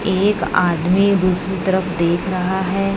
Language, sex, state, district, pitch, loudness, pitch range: Hindi, female, Punjab, Fazilka, 190 Hz, -18 LUFS, 180-195 Hz